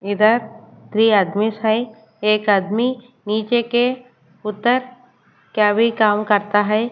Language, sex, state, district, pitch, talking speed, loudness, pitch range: Hindi, female, Haryana, Charkhi Dadri, 220 Hz, 115 wpm, -18 LUFS, 210-240 Hz